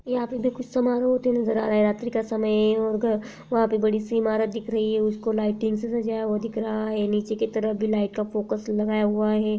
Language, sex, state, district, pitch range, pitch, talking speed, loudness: Hindi, female, Uttar Pradesh, Jalaun, 215-230 Hz, 220 Hz, 250 wpm, -24 LUFS